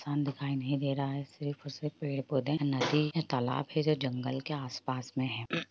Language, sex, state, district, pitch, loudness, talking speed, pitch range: Hindi, female, Jharkhand, Jamtara, 140 Hz, -33 LUFS, 260 wpm, 130-145 Hz